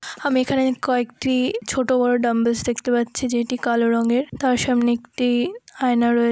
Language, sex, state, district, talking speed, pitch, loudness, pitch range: Bengali, female, West Bengal, Jalpaiguri, 150 wpm, 245 Hz, -21 LUFS, 235-260 Hz